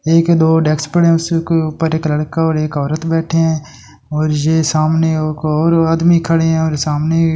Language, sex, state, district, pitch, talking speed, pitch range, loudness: Hindi, male, Delhi, New Delhi, 160 Hz, 195 wpm, 155-165 Hz, -14 LUFS